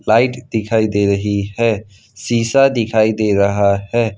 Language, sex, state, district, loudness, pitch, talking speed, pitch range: Hindi, male, Gujarat, Valsad, -16 LUFS, 110 Hz, 145 wpm, 100-115 Hz